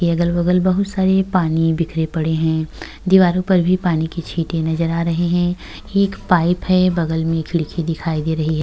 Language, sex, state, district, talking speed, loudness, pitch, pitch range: Hindi, female, Uttar Pradesh, Jyotiba Phule Nagar, 200 wpm, -18 LUFS, 170 Hz, 160-185 Hz